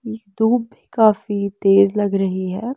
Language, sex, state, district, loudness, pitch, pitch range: Hindi, female, Bihar, West Champaran, -18 LUFS, 205 Hz, 195-225 Hz